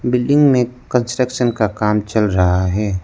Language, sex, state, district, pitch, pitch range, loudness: Hindi, male, Arunachal Pradesh, Lower Dibang Valley, 115 Hz, 105-125 Hz, -16 LUFS